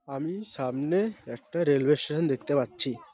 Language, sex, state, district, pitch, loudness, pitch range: Bengali, male, West Bengal, Malda, 145 Hz, -28 LUFS, 135-170 Hz